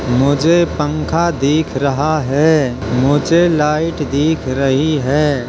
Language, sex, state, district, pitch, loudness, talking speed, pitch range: Hindi, male, Uttar Pradesh, Hamirpur, 150 Hz, -15 LUFS, 110 wpm, 135-155 Hz